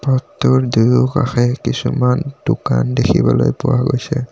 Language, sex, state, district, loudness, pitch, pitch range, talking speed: Assamese, male, Assam, Kamrup Metropolitan, -16 LUFS, 125 Hz, 120-130 Hz, 95 wpm